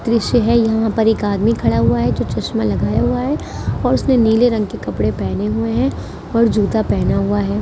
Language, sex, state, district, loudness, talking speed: Hindi, female, Delhi, New Delhi, -17 LUFS, 230 wpm